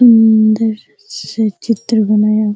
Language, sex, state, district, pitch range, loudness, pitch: Hindi, female, Bihar, Araria, 215-230 Hz, -13 LUFS, 220 Hz